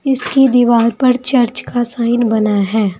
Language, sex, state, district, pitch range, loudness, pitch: Hindi, female, Uttar Pradesh, Saharanpur, 225-255 Hz, -13 LUFS, 240 Hz